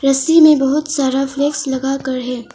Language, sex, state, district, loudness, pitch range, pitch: Hindi, female, Arunachal Pradesh, Longding, -15 LUFS, 265-290 Hz, 275 Hz